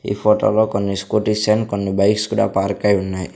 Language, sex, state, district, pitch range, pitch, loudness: Telugu, male, Andhra Pradesh, Sri Satya Sai, 100-105 Hz, 100 Hz, -18 LUFS